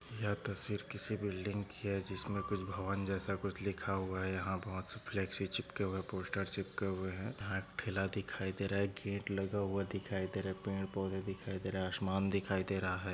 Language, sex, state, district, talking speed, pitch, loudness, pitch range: Hindi, male, Maharashtra, Nagpur, 220 wpm, 95 Hz, -39 LUFS, 95-100 Hz